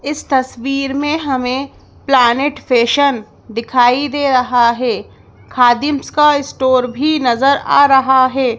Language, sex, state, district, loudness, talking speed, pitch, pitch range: Hindi, female, Madhya Pradesh, Bhopal, -14 LUFS, 125 wpm, 265 Hz, 245-280 Hz